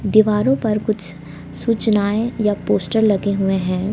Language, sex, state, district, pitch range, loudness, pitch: Hindi, female, Jharkhand, Palamu, 195-215 Hz, -18 LUFS, 210 Hz